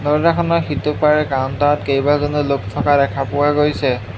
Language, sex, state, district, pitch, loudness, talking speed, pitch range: Assamese, male, Assam, Hailakandi, 145 Hz, -17 LUFS, 130 wpm, 135-150 Hz